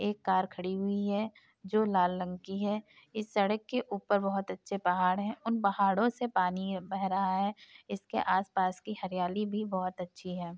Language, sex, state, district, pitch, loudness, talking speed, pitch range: Hindi, female, Uttar Pradesh, Etah, 195 Hz, -32 LUFS, 185 wpm, 185-210 Hz